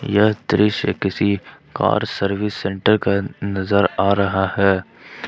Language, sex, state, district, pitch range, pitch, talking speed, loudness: Hindi, male, Jharkhand, Ranchi, 95-105 Hz, 100 Hz, 135 wpm, -19 LUFS